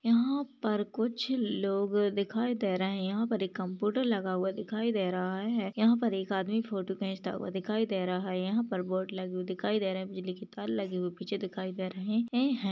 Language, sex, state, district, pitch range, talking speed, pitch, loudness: Hindi, female, Maharashtra, Chandrapur, 190-225 Hz, 225 wpm, 195 Hz, -32 LUFS